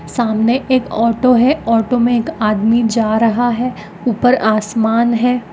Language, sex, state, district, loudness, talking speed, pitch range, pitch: Magahi, female, Bihar, Gaya, -14 LUFS, 130 wpm, 220-245 Hz, 235 Hz